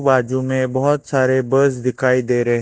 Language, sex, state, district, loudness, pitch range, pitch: Hindi, male, Chhattisgarh, Raipur, -17 LUFS, 125-135 Hz, 130 Hz